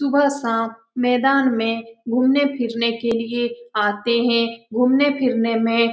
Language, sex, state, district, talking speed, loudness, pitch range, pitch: Hindi, female, Bihar, Lakhisarai, 120 wpm, -20 LUFS, 230-255 Hz, 235 Hz